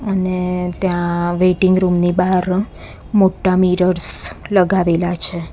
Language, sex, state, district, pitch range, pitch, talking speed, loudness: Gujarati, female, Gujarat, Gandhinagar, 175-185 Hz, 180 Hz, 110 wpm, -16 LUFS